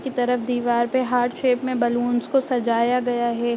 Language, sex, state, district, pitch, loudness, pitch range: Hindi, female, Uttar Pradesh, Ghazipur, 245 Hz, -22 LUFS, 240-250 Hz